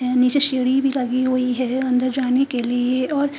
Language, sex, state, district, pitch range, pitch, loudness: Hindi, female, Punjab, Fazilka, 250-265 Hz, 255 Hz, -19 LUFS